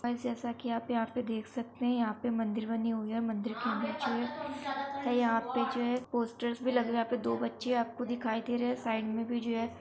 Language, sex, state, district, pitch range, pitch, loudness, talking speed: Hindi, female, Uttar Pradesh, Varanasi, 230-245 Hz, 235 Hz, -33 LUFS, 265 wpm